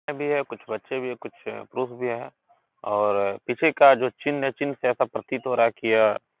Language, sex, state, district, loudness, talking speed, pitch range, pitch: Hindi, male, Uttar Pradesh, Etah, -24 LUFS, 245 wpm, 115-140 Hz, 125 Hz